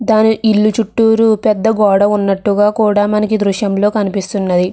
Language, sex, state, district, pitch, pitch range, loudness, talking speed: Telugu, female, Andhra Pradesh, Krishna, 210 Hz, 200-220 Hz, -13 LUFS, 125 wpm